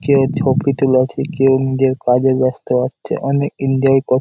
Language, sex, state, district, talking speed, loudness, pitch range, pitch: Bengali, male, West Bengal, Malda, 170 wpm, -16 LUFS, 130-140 Hz, 135 Hz